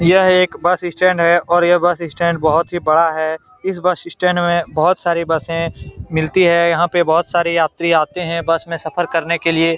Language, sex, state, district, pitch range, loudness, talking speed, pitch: Hindi, male, Bihar, Saran, 165-175 Hz, -16 LUFS, 220 wpm, 170 Hz